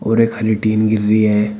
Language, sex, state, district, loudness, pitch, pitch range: Hindi, male, Uttar Pradesh, Shamli, -15 LUFS, 110 Hz, 105-110 Hz